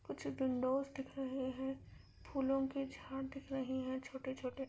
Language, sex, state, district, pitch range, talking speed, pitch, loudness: Hindi, female, Andhra Pradesh, Anantapur, 260-270 Hz, 190 wpm, 265 Hz, -41 LUFS